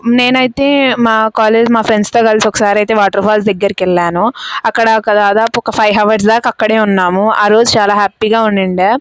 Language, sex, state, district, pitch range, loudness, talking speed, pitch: Telugu, female, Andhra Pradesh, Anantapur, 205-230 Hz, -10 LUFS, 160 wpm, 220 Hz